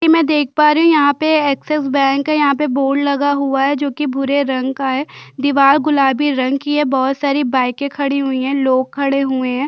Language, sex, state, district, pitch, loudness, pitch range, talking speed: Hindi, female, Chhattisgarh, Jashpur, 280 Hz, -15 LUFS, 270-290 Hz, 235 wpm